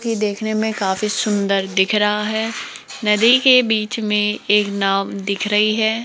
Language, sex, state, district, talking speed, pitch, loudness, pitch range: Hindi, female, Rajasthan, Jaipur, 170 wpm, 210 Hz, -17 LUFS, 200-220 Hz